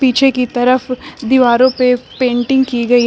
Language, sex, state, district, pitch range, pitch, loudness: Hindi, female, Uttar Pradesh, Shamli, 245-260 Hz, 250 Hz, -13 LUFS